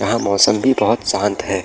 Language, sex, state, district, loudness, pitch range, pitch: Hindi, male, Bihar, Saharsa, -16 LUFS, 100-105 Hz, 100 Hz